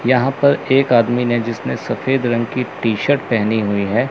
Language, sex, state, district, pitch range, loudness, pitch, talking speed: Hindi, male, Chandigarh, Chandigarh, 115-130 Hz, -17 LUFS, 120 Hz, 190 wpm